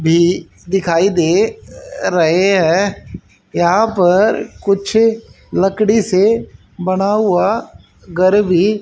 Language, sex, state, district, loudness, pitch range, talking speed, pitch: Hindi, female, Haryana, Jhajjar, -14 LUFS, 180-210 Hz, 95 wpm, 195 Hz